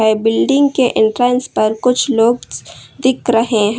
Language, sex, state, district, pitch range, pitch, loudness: Hindi, female, Karnataka, Bangalore, 220-255 Hz, 245 Hz, -14 LUFS